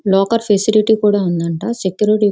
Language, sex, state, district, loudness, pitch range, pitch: Telugu, female, Andhra Pradesh, Visakhapatnam, -15 LUFS, 195-220 Hz, 210 Hz